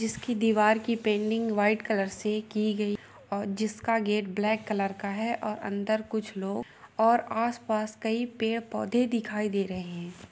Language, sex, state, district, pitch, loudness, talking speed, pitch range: Hindi, female, Chhattisgarh, Balrampur, 215 Hz, -29 LUFS, 170 wpm, 205-225 Hz